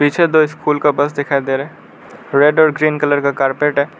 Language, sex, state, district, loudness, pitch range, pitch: Hindi, male, Arunachal Pradesh, Lower Dibang Valley, -15 LUFS, 140-150 Hz, 145 Hz